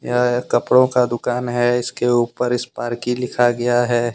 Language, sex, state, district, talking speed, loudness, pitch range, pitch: Hindi, male, Jharkhand, Deoghar, 175 wpm, -18 LUFS, 120-125 Hz, 120 Hz